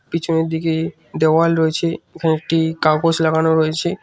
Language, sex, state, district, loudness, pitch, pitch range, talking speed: Bengali, male, West Bengal, Cooch Behar, -18 LUFS, 160 Hz, 160-165 Hz, 135 wpm